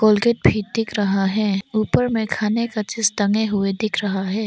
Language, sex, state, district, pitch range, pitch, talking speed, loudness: Hindi, female, Arunachal Pradesh, Papum Pare, 200-220 Hz, 215 Hz, 200 wpm, -20 LUFS